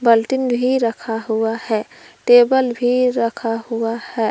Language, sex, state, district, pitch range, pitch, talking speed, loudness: Hindi, female, Jharkhand, Palamu, 225-250 Hz, 230 Hz, 140 wpm, -18 LUFS